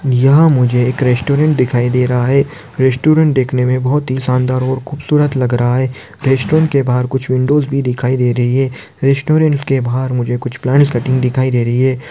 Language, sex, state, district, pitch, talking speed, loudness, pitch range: Hindi, male, Maharashtra, Aurangabad, 130 Hz, 200 wpm, -14 LUFS, 125-140 Hz